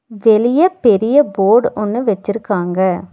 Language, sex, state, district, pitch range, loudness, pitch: Tamil, female, Tamil Nadu, Nilgiris, 200-240 Hz, -14 LUFS, 215 Hz